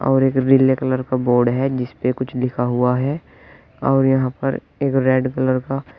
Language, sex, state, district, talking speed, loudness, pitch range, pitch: Hindi, male, Uttar Pradesh, Shamli, 190 wpm, -19 LUFS, 125-135 Hz, 130 Hz